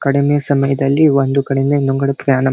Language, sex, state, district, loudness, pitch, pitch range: Kannada, male, Karnataka, Belgaum, -15 LUFS, 140 Hz, 135-140 Hz